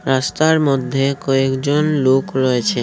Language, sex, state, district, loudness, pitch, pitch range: Bengali, male, Tripura, Unakoti, -16 LUFS, 135 Hz, 130-145 Hz